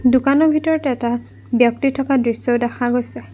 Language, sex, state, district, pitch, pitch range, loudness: Assamese, female, Assam, Kamrup Metropolitan, 250 Hz, 240-275 Hz, -18 LUFS